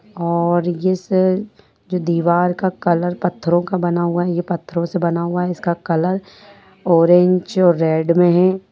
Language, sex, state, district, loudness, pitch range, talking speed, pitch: Hindi, female, Bihar, Sitamarhi, -17 LUFS, 170-185 Hz, 165 wpm, 175 Hz